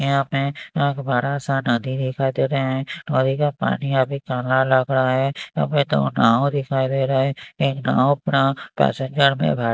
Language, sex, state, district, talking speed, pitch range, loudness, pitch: Hindi, male, Maharashtra, Mumbai Suburban, 195 wpm, 130-140 Hz, -20 LUFS, 135 Hz